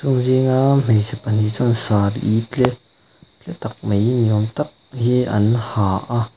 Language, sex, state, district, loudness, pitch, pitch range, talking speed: Mizo, male, Mizoram, Aizawl, -18 LUFS, 120 Hz, 105-125 Hz, 160 wpm